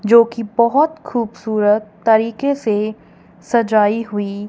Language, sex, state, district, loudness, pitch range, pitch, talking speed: Hindi, female, Punjab, Kapurthala, -17 LUFS, 210-235 Hz, 225 Hz, 105 wpm